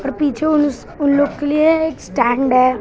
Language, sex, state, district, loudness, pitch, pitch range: Hindi, male, Maharashtra, Mumbai Suburban, -16 LUFS, 285 Hz, 255-305 Hz